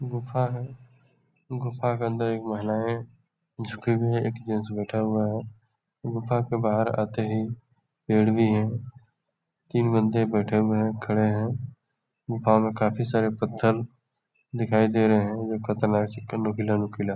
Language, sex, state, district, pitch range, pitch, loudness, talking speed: Hindi, male, Bihar, Darbhanga, 110-120 Hz, 115 Hz, -26 LUFS, 145 wpm